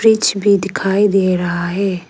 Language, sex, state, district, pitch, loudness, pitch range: Hindi, female, Arunachal Pradesh, Lower Dibang Valley, 195 Hz, -15 LUFS, 180-200 Hz